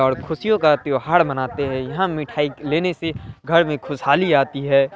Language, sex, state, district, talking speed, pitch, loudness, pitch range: Hindi, male, Bihar, Araria, 180 wpm, 145 Hz, -20 LUFS, 135-165 Hz